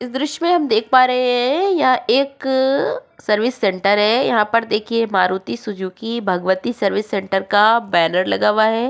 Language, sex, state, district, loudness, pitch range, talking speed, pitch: Hindi, female, Uttarakhand, Tehri Garhwal, -17 LUFS, 205-260 Hz, 175 wpm, 230 Hz